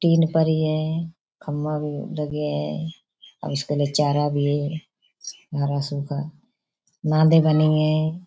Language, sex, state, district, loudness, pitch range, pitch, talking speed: Hindi, female, Uttar Pradesh, Budaun, -23 LUFS, 145-160 Hz, 155 Hz, 130 wpm